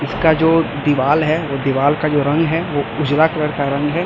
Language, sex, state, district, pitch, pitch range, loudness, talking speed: Hindi, male, Chhattisgarh, Raipur, 150 Hz, 145-160 Hz, -16 LUFS, 235 wpm